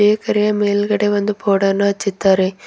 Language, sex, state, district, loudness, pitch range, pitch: Kannada, female, Karnataka, Bidar, -16 LUFS, 195-210 Hz, 205 Hz